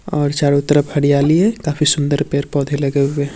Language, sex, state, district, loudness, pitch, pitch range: Hindi, male, Uttar Pradesh, Varanasi, -16 LUFS, 145 Hz, 140-150 Hz